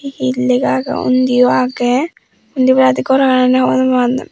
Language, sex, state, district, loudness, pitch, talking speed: Chakma, female, Tripura, Dhalai, -13 LUFS, 255 Hz, 125 wpm